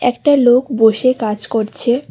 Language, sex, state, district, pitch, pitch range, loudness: Bengali, female, West Bengal, Alipurduar, 240 Hz, 225-255 Hz, -14 LUFS